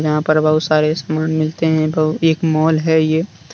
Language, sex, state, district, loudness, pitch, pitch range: Hindi, male, Jharkhand, Deoghar, -16 LUFS, 155 Hz, 155-160 Hz